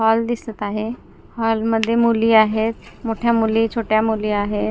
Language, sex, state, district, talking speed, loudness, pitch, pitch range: Marathi, female, Maharashtra, Gondia, 155 wpm, -19 LUFS, 225 Hz, 220-230 Hz